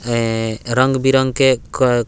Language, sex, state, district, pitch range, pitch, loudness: Bhojpuri, male, Bihar, Muzaffarpur, 115-130 Hz, 125 Hz, -16 LUFS